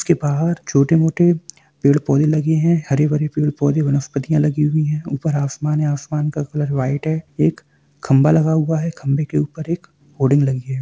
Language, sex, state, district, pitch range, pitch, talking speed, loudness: Hindi, male, Bihar, Samastipur, 145-155 Hz, 150 Hz, 175 wpm, -18 LUFS